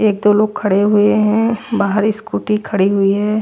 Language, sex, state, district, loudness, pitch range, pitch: Hindi, female, Chandigarh, Chandigarh, -15 LUFS, 205-215 Hz, 210 Hz